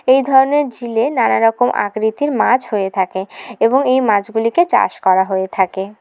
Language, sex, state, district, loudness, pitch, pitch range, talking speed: Bengali, female, West Bengal, Jalpaiguri, -15 LUFS, 225 Hz, 190-260 Hz, 160 wpm